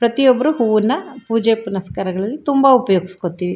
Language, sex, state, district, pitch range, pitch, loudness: Kannada, female, Karnataka, Shimoga, 190-260 Hz, 225 Hz, -17 LUFS